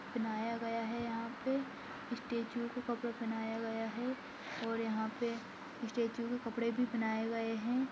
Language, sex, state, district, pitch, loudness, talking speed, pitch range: Hindi, female, Maharashtra, Aurangabad, 235 Hz, -39 LUFS, 160 wpm, 230-240 Hz